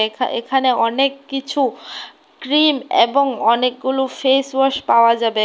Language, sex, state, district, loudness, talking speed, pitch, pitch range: Bengali, female, Tripura, West Tripura, -17 LUFS, 100 wpm, 265 Hz, 240-275 Hz